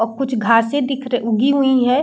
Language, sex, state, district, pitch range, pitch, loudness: Hindi, female, Bihar, Saran, 230-270 Hz, 255 Hz, -17 LUFS